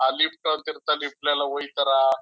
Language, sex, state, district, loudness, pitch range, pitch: Kannada, male, Karnataka, Chamarajanagar, -24 LUFS, 135-150 Hz, 145 Hz